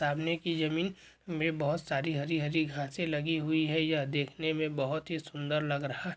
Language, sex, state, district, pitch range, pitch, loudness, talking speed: Hindi, male, Goa, North and South Goa, 145-165 Hz, 155 Hz, -32 LUFS, 205 wpm